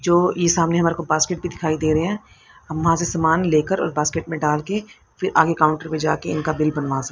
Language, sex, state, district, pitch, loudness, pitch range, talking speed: Hindi, female, Haryana, Rohtak, 160 Hz, -20 LUFS, 155-170 Hz, 255 wpm